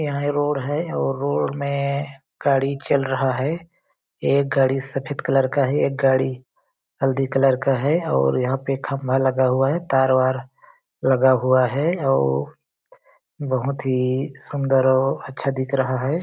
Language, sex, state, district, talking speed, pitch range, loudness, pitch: Hindi, male, Chhattisgarh, Balrampur, 165 wpm, 130-145 Hz, -21 LUFS, 135 Hz